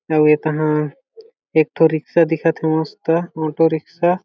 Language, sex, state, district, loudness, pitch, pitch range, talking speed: Chhattisgarhi, male, Chhattisgarh, Jashpur, -18 LUFS, 160 Hz, 155-170 Hz, 170 wpm